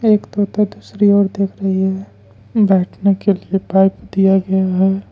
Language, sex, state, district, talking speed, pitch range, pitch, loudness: Hindi, male, Jharkhand, Ranchi, 165 wpm, 190-200 Hz, 195 Hz, -16 LUFS